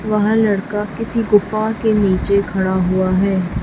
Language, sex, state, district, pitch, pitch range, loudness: Hindi, female, Chhattisgarh, Raipur, 205 Hz, 190-215 Hz, -17 LUFS